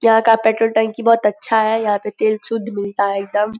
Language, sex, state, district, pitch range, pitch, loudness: Hindi, female, Uttar Pradesh, Gorakhpur, 210-225 Hz, 220 Hz, -17 LUFS